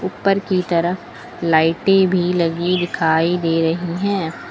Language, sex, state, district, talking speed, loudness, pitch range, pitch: Hindi, female, Uttar Pradesh, Lucknow, 135 wpm, -18 LUFS, 165-185 Hz, 175 Hz